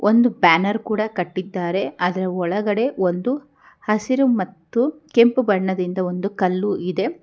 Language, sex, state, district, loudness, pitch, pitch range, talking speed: Kannada, female, Karnataka, Bangalore, -20 LUFS, 200 Hz, 185-240 Hz, 115 wpm